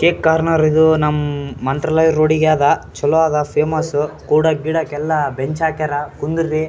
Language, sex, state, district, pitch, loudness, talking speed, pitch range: Kannada, male, Karnataka, Raichur, 155 Hz, -16 LUFS, 180 wpm, 150-160 Hz